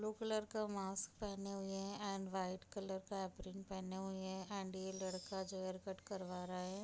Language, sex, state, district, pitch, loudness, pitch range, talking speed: Hindi, female, Bihar, Darbhanga, 190 Hz, -46 LUFS, 190-200 Hz, 220 wpm